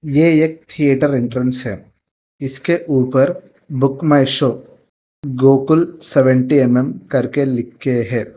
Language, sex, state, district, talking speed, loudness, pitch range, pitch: Hindi, female, Telangana, Hyderabad, 130 wpm, -15 LUFS, 130-150 Hz, 135 Hz